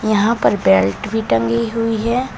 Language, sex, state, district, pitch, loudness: Hindi, female, Uttar Pradesh, Shamli, 220 Hz, -16 LUFS